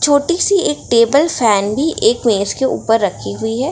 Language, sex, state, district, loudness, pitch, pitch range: Hindi, female, Bihar, Darbhanga, -15 LUFS, 250 Hz, 220-310 Hz